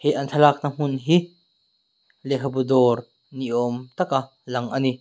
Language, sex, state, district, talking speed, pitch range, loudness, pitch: Mizo, male, Mizoram, Aizawl, 155 wpm, 125-145 Hz, -22 LUFS, 135 Hz